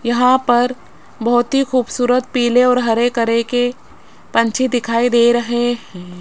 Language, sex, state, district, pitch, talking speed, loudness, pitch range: Hindi, female, Rajasthan, Jaipur, 240 Hz, 145 wpm, -16 LUFS, 235-250 Hz